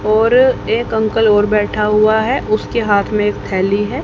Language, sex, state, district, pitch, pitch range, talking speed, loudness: Hindi, female, Haryana, Rohtak, 215 Hz, 210-225 Hz, 195 wpm, -14 LUFS